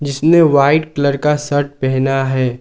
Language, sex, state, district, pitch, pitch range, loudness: Hindi, male, Jharkhand, Garhwa, 140 Hz, 135-150 Hz, -14 LUFS